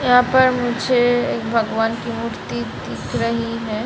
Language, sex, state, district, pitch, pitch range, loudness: Hindi, female, Bihar, Samastipur, 230 Hz, 230-250 Hz, -19 LUFS